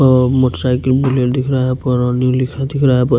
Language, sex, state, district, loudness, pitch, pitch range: Hindi, male, Punjab, Kapurthala, -15 LUFS, 130 Hz, 125-130 Hz